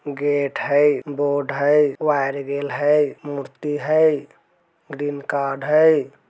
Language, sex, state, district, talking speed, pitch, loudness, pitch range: Bajjika, male, Bihar, Vaishali, 115 wpm, 145 Hz, -20 LUFS, 140-150 Hz